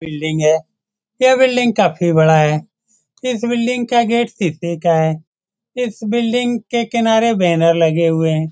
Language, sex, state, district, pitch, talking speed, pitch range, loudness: Hindi, male, Bihar, Saran, 210 Hz, 155 wpm, 160-235 Hz, -15 LUFS